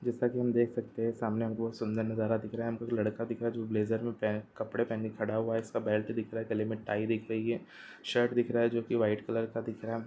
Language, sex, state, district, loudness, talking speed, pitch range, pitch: Hindi, male, Bihar, Jahanabad, -33 LUFS, 305 wpm, 110-115 Hz, 115 Hz